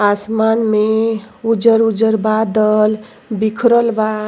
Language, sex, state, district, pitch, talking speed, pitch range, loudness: Bhojpuri, female, Uttar Pradesh, Ghazipur, 220 Hz, 85 wpm, 215-225 Hz, -14 LUFS